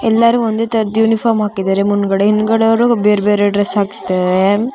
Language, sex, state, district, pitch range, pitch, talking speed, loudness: Kannada, female, Karnataka, Shimoga, 200-225 Hz, 210 Hz, 140 wpm, -14 LUFS